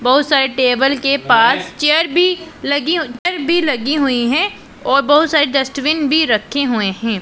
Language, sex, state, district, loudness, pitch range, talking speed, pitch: Hindi, female, Punjab, Pathankot, -15 LUFS, 255-310 Hz, 175 wpm, 280 Hz